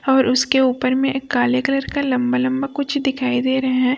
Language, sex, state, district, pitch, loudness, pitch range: Hindi, female, Chhattisgarh, Raipur, 260 Hz, -18 LUFS, 255-270 Hz